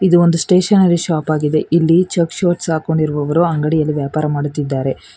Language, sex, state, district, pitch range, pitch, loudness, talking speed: Kannada, female, Karnataka, Bangalore, 150-175 Hz, 160 Hz, -15 LUFS, 140 wpm